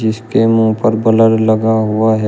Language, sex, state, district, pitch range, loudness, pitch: Hindi, male, Uttar Pradesh, Shamli, 110-115 Hz, -12 LUFS, 110 Hz